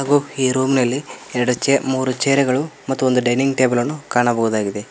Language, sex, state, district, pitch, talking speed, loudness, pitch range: Kannada, male, Karnataka, Koppal, 130 Hz, 170 wpm, -18 LUFS, 125-135 Hz